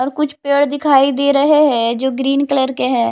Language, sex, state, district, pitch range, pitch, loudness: Hindi, female, Himachal Pradesh, Shimla, 260-285 Hz, 275 Hz, -14 LUFS